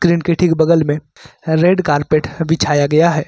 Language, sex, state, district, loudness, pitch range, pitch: Hindi, male, Uttar Pradesh, Lucknow, -15 LUFS, 150-170 Hz, 160 Hz